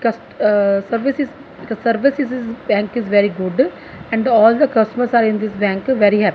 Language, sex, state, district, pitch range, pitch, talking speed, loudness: English, female, Punjab, Fazilka, 205-245 Hz, 225 Hz, 170 wpm, -16 LUFS